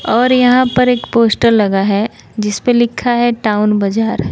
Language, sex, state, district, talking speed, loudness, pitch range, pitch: Hindi, male, Bihar, West Champaran, 180 wpm, -13 LUFS, 210-245 Hz, 230 Hz